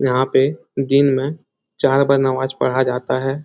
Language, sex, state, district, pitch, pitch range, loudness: Hindi, male, Bihar, Lakhisarai, 135 Hz, 130-140 Hz, -18 LUFS